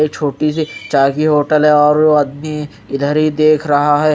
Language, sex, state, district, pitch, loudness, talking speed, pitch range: Hindi, male, Chandigarh, Chandigarh, 150 Hz, -14 LUFS, 190 wpm, 145-155 Hz